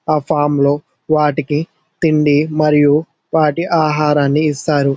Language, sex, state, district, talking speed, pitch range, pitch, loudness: Telugu, male, Telangana, Karimnagar, 110 wpm, 145-155 Hz, 150 Hz, -15 LUFS